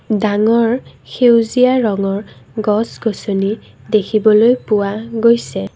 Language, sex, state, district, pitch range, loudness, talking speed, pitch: Assamese, female, Assam, Kamrup Metropolitan, 210-230 Hz, -15 LUFS, 75 wpm, 215 Hz